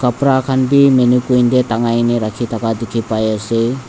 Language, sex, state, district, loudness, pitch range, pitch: Nagamese, male, Nagaland, Dimapur, -14 LUFS, 115-130 Hz, 120 Hz